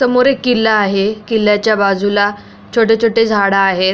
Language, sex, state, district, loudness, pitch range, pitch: Marathi, female, Maharashtra, Pune, -13 LUFS, 200-230 Hz, 215 Hz